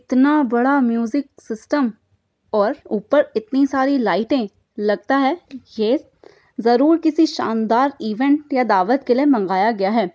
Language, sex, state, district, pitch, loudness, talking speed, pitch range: Hindi, female, Uttar Pradesh, Budaun, 255 Hz, -18 LUFS, 135 wpm, 220-280 Hz